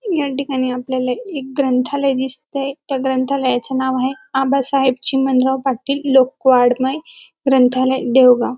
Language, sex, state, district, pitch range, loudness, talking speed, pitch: Marathi, female, Maharashtra, Dhule, 255-275 Hz, -17 LUFS, 110 wpm, 265 Hz